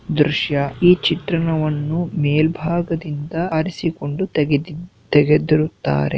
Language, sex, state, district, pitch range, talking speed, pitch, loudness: Kannada, male, Karnataka, Shimoga, 150-170 Hz, 80 wpm, 155 Hz, -19 LUFS